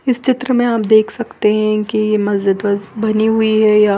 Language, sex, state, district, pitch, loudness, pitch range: Hindi, female, Punjab, Fazilka, 215 Hz, -15 LUFS, 210-225 Hz